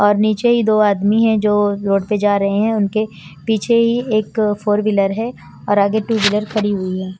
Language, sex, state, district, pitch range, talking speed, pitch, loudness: Hindi, female, Himachal Pradesh, Shimla, 200-220 Hz, 215 wpm, 210 Hz, -16 LUFS